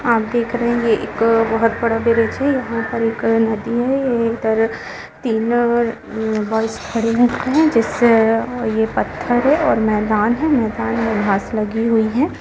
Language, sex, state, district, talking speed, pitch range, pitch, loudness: Hindi, female, Jharkhand, Jamtara, 170 wpm, 220-240 Hz, 230 Hz, -17 LUFS